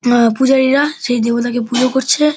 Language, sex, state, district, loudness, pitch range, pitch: Bengali, male, West Bengal, Dakshin Dinajpur, -14 LUFS, 240-270 Hz, 255 Hz